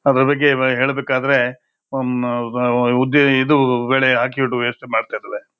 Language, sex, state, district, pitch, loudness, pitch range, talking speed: Kannada, male, Karnataka, Shimoga, 130 Hz, -17 LUFS, 125-135 Hz, 120 wpm